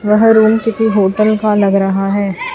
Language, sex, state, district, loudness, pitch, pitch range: Hindi, female, Chhattisgarh, Raipur, -12 LUFS, 210 Hz, 200-220 Hz